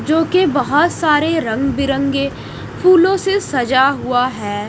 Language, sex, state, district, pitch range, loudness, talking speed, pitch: Hindi, female, Odisha, Nuapada, 260-325 Hz, -15 LUFS, 140 wpm, 275 Hz